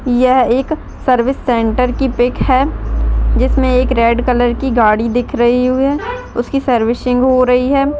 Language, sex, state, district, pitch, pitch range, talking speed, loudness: Hindi, female, Bihar, Bhagalpur, 255 Hz, 245-265 Hz, 165 wpm, -14 LUFS